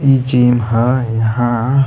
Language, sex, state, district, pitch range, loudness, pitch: Bhojpuri, male, Bihar, East Champaran, 115-130 Hz, -14 LUFS, 120 Hz